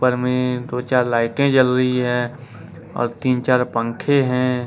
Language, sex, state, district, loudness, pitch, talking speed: Hindi, male, Jharkhand, Ranchi, -19 LUFS, 125 Hz, 165 wpm